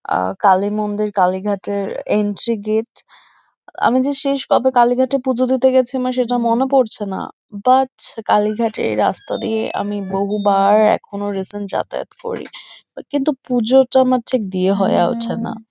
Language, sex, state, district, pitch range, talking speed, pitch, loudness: Bengali, female, West Bengal, Kolkata, 205-255 Hz, 145 wpm, 225 Hz, -17 LUFS